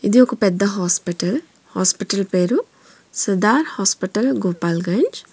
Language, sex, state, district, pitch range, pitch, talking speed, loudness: Telugu, female, Telangana, Hyderabad, 180-250 Hz, 200 Hz, 100 wpm, -19 LUFS